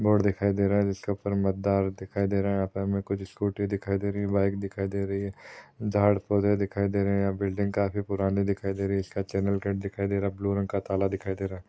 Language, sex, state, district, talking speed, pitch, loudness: Hindi, male, Maharashtra, Chandrapur, 245 wpm, 100 Hz, -28 LUFS